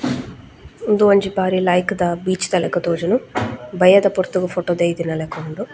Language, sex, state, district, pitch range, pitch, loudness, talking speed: Tulu, female, Karnataka, Dakshina Kannada, 170-195 Hz, 180 Hz, -18 LUFS, 135 wpm